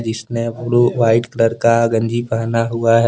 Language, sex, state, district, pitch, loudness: Hindi, male, Jharkhand, Deoghar, 115 Hz, -16 LUFS